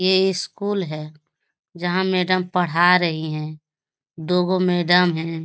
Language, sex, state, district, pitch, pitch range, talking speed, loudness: Hindi, female, Bihar, Lakhisarai, 175 Hz, 155-185 Hz, 145 wpm, -20 LUFS